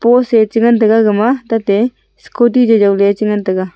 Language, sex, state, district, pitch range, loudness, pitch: Wancho, female, Arunachal Pradesh, Longding, 205-235 Hz, -12 LUFS, 225 Hz